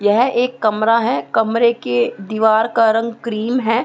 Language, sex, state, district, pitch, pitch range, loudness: Hindi, female, Bihar, Saran, 225 Hz, 220-235 Hz, -16 LUFS